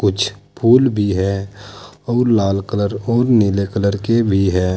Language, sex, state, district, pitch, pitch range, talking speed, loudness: Hindi, male, Uttar Pradesh, Saharanpur, 100 Hz, 100-115 Hz, 165 wpm, -16 LUFS